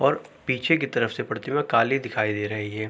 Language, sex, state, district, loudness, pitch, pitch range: Hindi, male, Uttar Pradesh, Jalaun, -25 LUFS, 115 Hz, 105-135 Hz